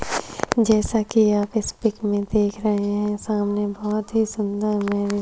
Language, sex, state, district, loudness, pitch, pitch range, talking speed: Hindi, female, Maharashtra, Chandrapur, -22 LUFS, 210 Hz, 205-215 Hz, 170 wpm